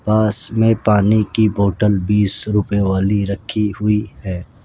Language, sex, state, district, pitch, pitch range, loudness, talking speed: Hindi, male, Rajasthan, Jaipur, 105 Hz, 100-110 Hz, -17 LUFS, 140 wpm